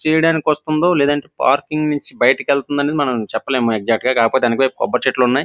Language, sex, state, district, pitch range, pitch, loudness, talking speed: Telugu, male, Andhra Pradesh, Visakhapatnam, 125-150 Hz, 140 Hz, -17 LUFS, 200 wpm